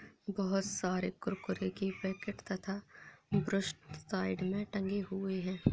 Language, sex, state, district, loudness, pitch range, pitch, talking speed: Hindi, male, Bihar, Lakhisarai, -37 LUFS, 190-200 Hz, 195 Hz, 115 wpm